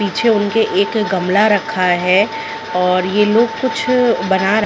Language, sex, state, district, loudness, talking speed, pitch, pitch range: Hindi, female, Chhattisgarh, Raigarh, -15 LUFS, 165 wpm, 215 Hz, 190-225 Hz